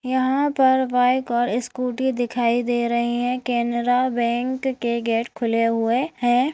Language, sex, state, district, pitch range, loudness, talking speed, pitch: Hindi, female, Uttarakhand, Tehri Garhwal, 235-260 Hz, -21 LUFS, 145 wpm, 245 Hz